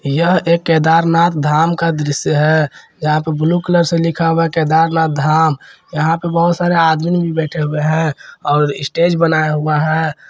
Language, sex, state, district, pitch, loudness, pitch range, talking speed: Hindi, male, Jharkhand, Garhwa, 160 Hz, -14 LUFS, 155-170 Hz, 170 wpm